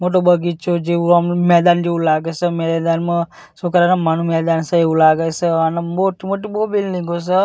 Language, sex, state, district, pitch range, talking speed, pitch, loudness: Gujarati, male, Gujarat, Gandhinagar, 165-175 Hz, 175 wpm, 170 Hz, -16 LUFS